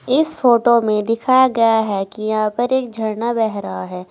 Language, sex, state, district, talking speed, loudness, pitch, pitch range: Hindi, female, Uttar Pradesh, Saharanpur, 205 wpm, -17 LUFS, 225 Hz, 215-245 Hz